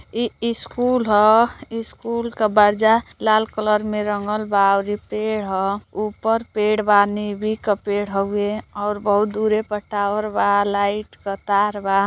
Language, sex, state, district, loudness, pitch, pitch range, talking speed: Bhojpuri, female, Uttar Pradesh, Deoria, -20 LUFS, 210 Hz, 205-220 Hz, 165 wpm